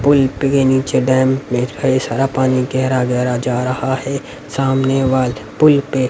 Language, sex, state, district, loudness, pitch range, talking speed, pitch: Hindi, male, Haryana, Rohtak, -16 LUFS, 125-135 Hz, 155 wpm, 130 Hz